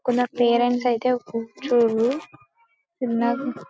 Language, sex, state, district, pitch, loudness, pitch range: Telugu, female, Telangana, Karimnagar, 245 Hz, -22 LUFS, 235-260 Hz